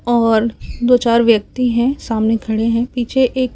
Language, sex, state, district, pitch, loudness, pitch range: Hindi, female, Chhattisgarh, Raipur, 235 Hz, -16 LUFS, 225-250 Hz